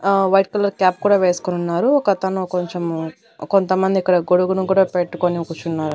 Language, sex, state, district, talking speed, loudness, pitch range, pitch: Telugu, female, Andhra Pradesh, Annamaya, 150 wpm, -18 LUFS, 175-195 Hz, 185 Hz